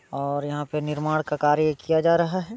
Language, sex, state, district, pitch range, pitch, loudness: Hindi, male, Bihar, Muzaffarpur, 150-160 Hz, 150 Hz, -24 LUFS